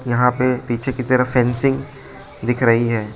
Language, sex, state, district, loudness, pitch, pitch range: Hindi, male, Arunachal Pradesh, Lower Dibang Valley, -18 LUFS, 125 Hz, 120-130 Hz